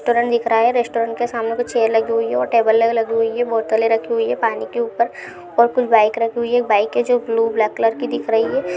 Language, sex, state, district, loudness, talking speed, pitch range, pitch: Hindi, female, Chhattisgarh, Balrampur, -18 LUFS, 295 wpm, 225-240 Hz, 230 Hz